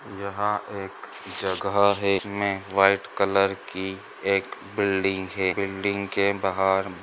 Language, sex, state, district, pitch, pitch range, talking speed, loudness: Hindi, male, Andhra Pradesh, Chittoor, 100 Hz, 95-100 Hz, 120 wpm, -25 LUFS